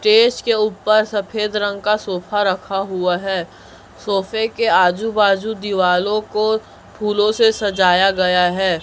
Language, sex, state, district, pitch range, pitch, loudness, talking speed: Hindi, male, Chhattisgarh, Raipur, 190-215 Hz, 205 Hz, -17 LUFS, 145 wpm